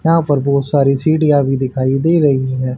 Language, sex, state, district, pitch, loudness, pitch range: Hindi, male, Haryana, Rohtak, 140 Hz, -14 LUFS, 130-155 Hz